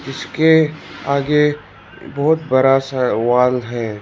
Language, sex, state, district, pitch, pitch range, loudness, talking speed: Hindi, male, Arunachal Pradesh, Lower Dibang Valley, 135 Hz, 125-150 Hz, -16 LUFS, 105 wpm